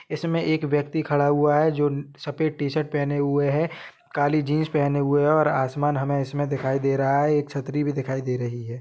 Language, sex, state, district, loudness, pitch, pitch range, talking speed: Hindi, male, Jharkhand, Sahebganj, -23 LUFS, 145 Hz, 140-150 Hz, 210 wpm